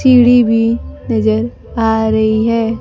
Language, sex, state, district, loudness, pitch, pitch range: Hindi, female, Bihar, Kaimur, -13 LUFS, 225 Hz, 220-230 Hz